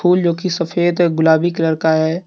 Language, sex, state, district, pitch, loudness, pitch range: Hindi, male, Jharkhand, Deoghar, 170 Hz, -16 LUFS, 160-175 Hz